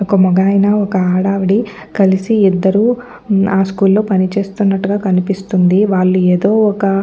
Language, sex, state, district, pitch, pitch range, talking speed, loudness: Telugu, female, Andhra Pradesh, Guntur, 195 Hz, 190-205 Hz, 135 wpm, -13 LUFS